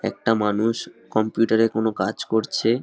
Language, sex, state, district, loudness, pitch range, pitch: Bengali, male, West Bengal, Dakshin Dinajpur, -22 LUFS, 110-115 Hz, 110 Hz